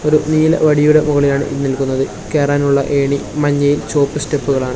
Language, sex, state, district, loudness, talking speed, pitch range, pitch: Malayalam, male, Kerala, Kasaragod, -15 LUFS, 150 wpm, 140-150 Hz, 145 Hz